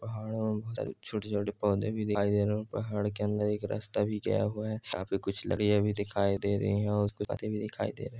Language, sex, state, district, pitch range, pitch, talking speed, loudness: Hindi, male, Andhra Pradesh, Chittoor, 100-110 Hz, 105 Hz, 225 wpm, -32 LUFS